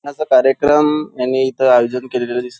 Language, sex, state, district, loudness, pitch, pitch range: Marathi, male, Maharashtra, Nagpur, -15 LUFS, 130 Hz, 125-145 Hz